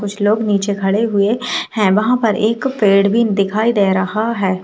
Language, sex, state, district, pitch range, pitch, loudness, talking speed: Hindi, female, Uttarakhand, Tehri Garhwal, 200-225 Hz, 210 Hz, -15 LUFS, 195 wpm